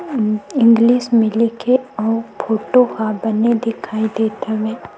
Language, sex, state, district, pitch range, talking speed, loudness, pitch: Chhattisgarhi, female, Chhattisgarh, Sukma, 220-235 Hz, 135 wpm, -17 LUFS, 225 Hz